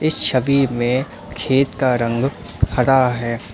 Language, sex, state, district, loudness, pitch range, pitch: Hindi, male, Assam, Kamrup Metropolitan, -18 LUFS, 115-135 Hz, 125 Hz